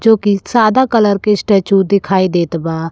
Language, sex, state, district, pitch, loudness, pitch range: Bhojpuri, female, Uttar Pradesh, Gorakhpur, 200 Hz, -13 LUFS, 185-215 Hz